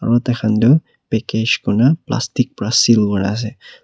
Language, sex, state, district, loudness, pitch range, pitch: Nagamese, male, Nagaland, Kohima, -16 LUFS, 110-125 Hz, 115 Hz